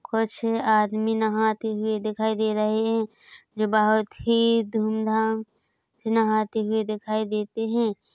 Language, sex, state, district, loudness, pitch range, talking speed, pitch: Hindi, female, Chhattisgarh, Bilaspur, -24 LUFS, 215-225 Hz, 140 wpm, 220 Hz